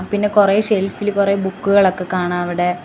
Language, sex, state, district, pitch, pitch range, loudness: Malayalam, female, Kerala, Kollam, 195 Hz, 185-205 Hz, -16 LUFS